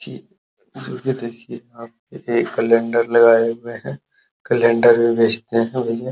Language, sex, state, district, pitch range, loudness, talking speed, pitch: Hindi, male, Bihar, Araria, 115-120 Hz, -17 LUFS, 100 wpm, 115 Hz